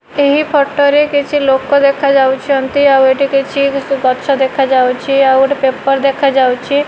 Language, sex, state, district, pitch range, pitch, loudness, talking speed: Odia, female, Odisha, Malkangiri, 265-285 Hz, 275 Hz, -12 LUFS, 130 wpm